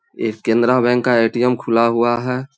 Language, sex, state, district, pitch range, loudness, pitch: Hindi, male, Bihar, Vaishali, 115-125 Hz, -17 LUFS, 120 Hz